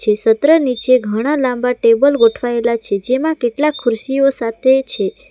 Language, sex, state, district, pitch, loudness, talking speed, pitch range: Gujarati, female, Gujarat, Valsad, 250 Hz, -15 LUFS, 135 wpm, 230-280 Hz